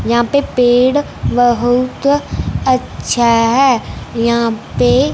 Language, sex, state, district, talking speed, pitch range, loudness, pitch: Hindi, female, Punjab, Fazilka, 95 wpm, 235-260 Hz, -14 LUFS, 245 Hz